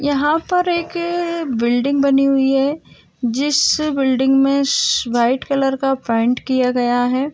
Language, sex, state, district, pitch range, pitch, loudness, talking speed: Hindi, female, Bihar, Gaya, 250-290 Hz, 270 Hz, -17 LUFS, 140 wpm